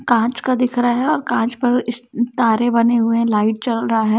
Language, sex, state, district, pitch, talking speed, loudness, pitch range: Hindi, female, Haryana, Charkhi Dadri, 240 Hz, 255 wpm, -17 LUFS, 230-245 Hz